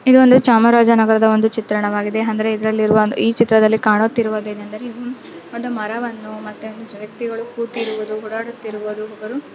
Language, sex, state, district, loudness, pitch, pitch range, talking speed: Kannada, female, Karnataka, Chamarajanagar, -16 LUFS, 220 Hz, 215-235 Hz, 115 wpm